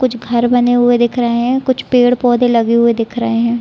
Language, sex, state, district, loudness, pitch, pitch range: Hindi, female, Bihar, East Champaran, -13 LUFS, 240 Hz, 235-245 Hz